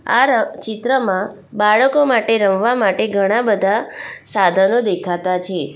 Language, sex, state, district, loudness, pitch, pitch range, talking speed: Gujarati, female, Gujarat, Valsad, -16 LUFS, 210 Hz, 190-235 Hz, 125 wpm